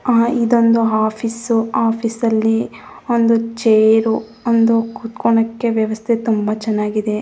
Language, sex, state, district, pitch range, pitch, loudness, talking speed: Kannada, female, Karnataka, Mysore, 220-230 Hz, 230 Hz, -16 LUFS, 110 wpm